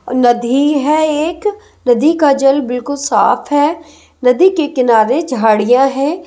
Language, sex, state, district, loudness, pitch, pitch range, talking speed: Hindi, male, Delhi, New Delhi, -13 LUFS, 280 Hz, 250-310 Hz, 145 wpm